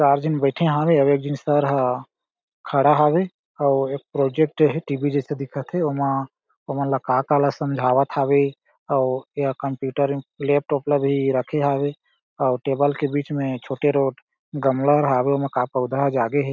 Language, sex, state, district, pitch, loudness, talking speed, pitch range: Chhattisgarhi, male, Chhattisgarh, Jashpur, 140 Hz, -21 LUFS, 175 wpm, 135-145 Hz